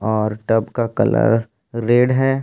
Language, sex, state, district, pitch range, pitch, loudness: Hindi, male, Jharkhand, Ranchi, 110-125 Hz, 115 Hz, -18 LUFS